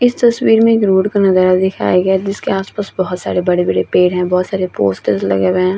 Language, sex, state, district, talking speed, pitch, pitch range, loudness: Hindi, female, Bihar, Vaishali, 260 wpm, 185 Hz, 180-195 Hz, -14 LUFS